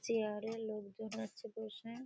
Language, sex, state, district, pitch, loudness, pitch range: Bengali, female, West Bengal, Kolkata, 220 Hz, -43 LUFS, 210-225 Hz